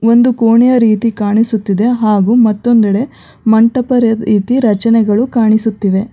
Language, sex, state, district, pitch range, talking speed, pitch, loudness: Kannada, female, Karnataka, Bangalore, 215-235 Hz, 100 wpm, 225 Hz, -11 LUFS